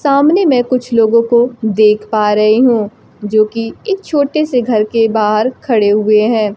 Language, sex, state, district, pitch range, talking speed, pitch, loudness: Hindi, female, Bihar, Kaimur, 215-255 Hz, 175 wpm, 225 Hz, -12 LUFS